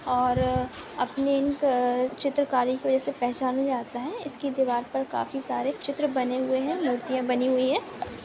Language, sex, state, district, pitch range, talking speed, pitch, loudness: Hindi, female, Maharashtra, Aurangabad, 245-275 Hz, 165 wpm, 255 Hz, -27 LUFS